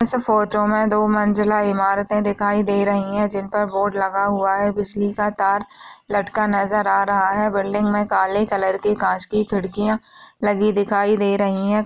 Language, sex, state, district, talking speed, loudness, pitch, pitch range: Hindi, female, Uttar Pradesh, Muzaffarnagar, 180 wpm, -19 LUFS, 205 Hz, 200-210 Hz